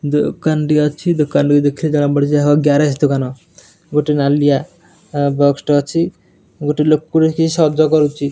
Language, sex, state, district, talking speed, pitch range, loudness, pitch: Odia, male, Odisha, Nuapada, 165 wpm, 145-155 Hz, -15 LUFS, 150 Hz